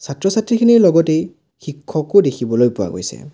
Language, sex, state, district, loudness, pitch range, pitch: Assamese, male, Assam, Sonitpur, -15 LUFS, 125-195 Hz, 155 Hz